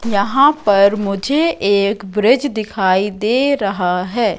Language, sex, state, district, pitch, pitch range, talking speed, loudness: Hindi, female, Madhya Pradesh, Katni, 205 Hz, 200-250 Hz, 125 wpm, -15 LUFS